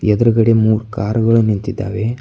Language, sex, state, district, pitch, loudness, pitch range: Kannada, male, Karnataka, Bidar, 110 Hz, -15 LUFS, 105-115 Hz